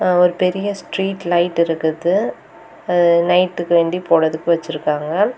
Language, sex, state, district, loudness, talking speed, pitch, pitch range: Tamil, female, Tamil Nadu, Kanyakumari, -17 LUFS, 110 wpm, 175 Hz, 165-180 Hz